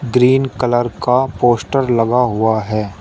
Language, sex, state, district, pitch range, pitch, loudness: Hindi, male, Uttar Pradesh, Shamli, 110-130 Hz, 120 Hz, -15 LUFS